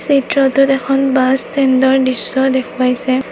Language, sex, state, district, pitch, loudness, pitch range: Assamese, female, Assam, Kamrup Metropolitan, 265 Hz, -14 LUFS, 260-275 Hz